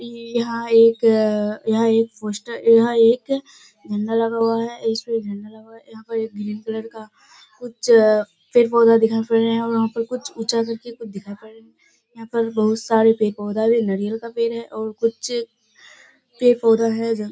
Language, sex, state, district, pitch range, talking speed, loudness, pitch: Hindi, female, Bihar, Kishanganj, 220-230 Hz, 180 wpm, -19 LUFS, 225 Hz